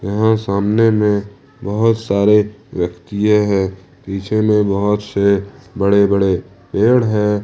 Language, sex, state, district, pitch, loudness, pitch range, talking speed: Hindi, male, Jharkhand, Ranchi, 100 Hz, -16 LUFS, 100-105 Hz, 115 wpm